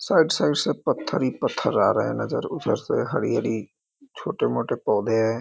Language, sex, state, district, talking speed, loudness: Hindi, male, Bihar, Muzaffarpur, 175 wpm, -24 LUFS